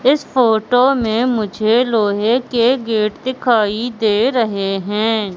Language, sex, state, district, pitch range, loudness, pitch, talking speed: Hindi, female, Madhya Pradesh, Katni, 215-245 Hz, -16 LUFS, 225 Hz, 125 wpm